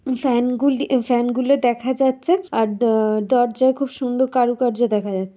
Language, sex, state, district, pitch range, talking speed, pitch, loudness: Bengali, female, West Bengal, Dakshin Dinajpur, 240-260 Hz, 180 wpm, 250 Hz, -19 LUFS